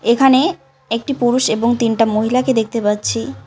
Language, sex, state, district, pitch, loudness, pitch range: Bengali, female, West Bengal, Cooch Behar, 230 Hz, -16 LUFS, 220-250 Hz